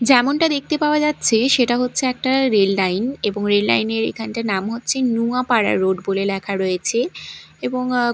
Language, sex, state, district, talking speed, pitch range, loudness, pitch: Bengali, female, Odisha, Malkangiri, 170 wpm, 195-255 Hz, -19 LUFS, 235 Hz